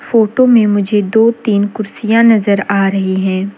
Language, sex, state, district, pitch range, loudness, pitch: Hindi, female, Jharkhand, Deoghar, 200-225 Hz, -12 LUFS, 210 Hz